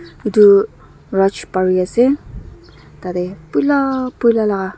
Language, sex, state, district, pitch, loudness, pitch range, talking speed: Nagamese, female, Nagaland, Dimapur, 200 Hz, -16 LUFS, 185-235 Hz, 115 wpm